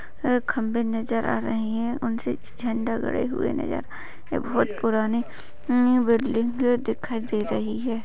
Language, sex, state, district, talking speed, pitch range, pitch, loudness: Hindi, female, Uttar Pradesh, Jalaun, 165 wpm, 225-245 Hz, 230 Hz, -25 LUFS